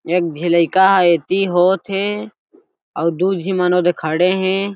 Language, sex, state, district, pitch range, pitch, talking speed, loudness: Chhattisgarhi, male, Chhattisgarh, Jashpur, 175-195 Hz, 185 Hz, 165 wpm, -16 LUFS